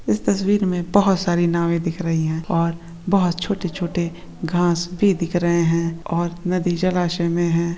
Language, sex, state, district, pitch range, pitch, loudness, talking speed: Hindi, female, Maharashtra, Sindhudurg, 170-180 Hz, 175 Hz, -20 LUFS, 170 wpm